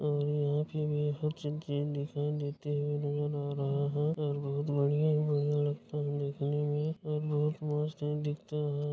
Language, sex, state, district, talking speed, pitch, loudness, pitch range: Hindi, female, Bihar, Bhagalpur, 95 wpm, 145 Hz, -33 LUFS, 145-150 Hz